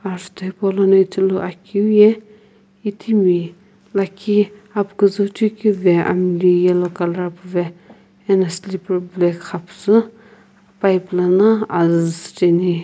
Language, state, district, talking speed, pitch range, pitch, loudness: Sumi, Nagaland, Kohima, 110 wpm, 180-205 Hz, 190 Hz, -17 LUFS